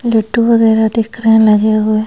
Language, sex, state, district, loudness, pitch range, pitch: Hindi, female, Goa, North and South Goa, -11 LUFS, 215-225 Hz, 220 Hz